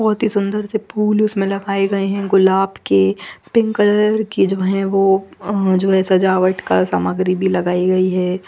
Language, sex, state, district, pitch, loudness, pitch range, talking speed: Hindi, female, Punjab, Fazilka, 195 Hz, -16 LUFS, 185-205 Hz, 190 wpm